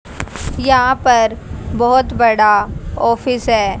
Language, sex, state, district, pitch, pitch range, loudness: Hindi, female, Haryana, Jhajjar, 235 Hz, 220-255 Hz, -14 LUFS